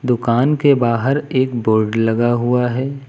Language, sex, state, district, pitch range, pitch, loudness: Hindi, male, Uttar Pradesh, Lucknow, 115-135 Hz, 125 Hz, -16 LUFS